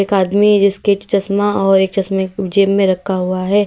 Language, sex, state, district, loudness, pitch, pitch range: Hindi, female, Uttar Pradesh, Lalitpur, -14 LUFS, 195 Hz, 190-200 Hz